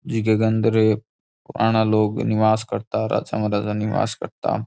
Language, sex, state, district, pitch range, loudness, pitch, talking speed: Rajasthani, male, Rajasthan, Churu, 105-110 Hz, -21 LUFS, 110 Hz, 140 wpm